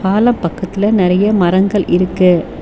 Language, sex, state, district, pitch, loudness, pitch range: Tamil, female, Tamil Nadu, Nilgiris, 190 Hz, -13 LUFS, 180-205 Hz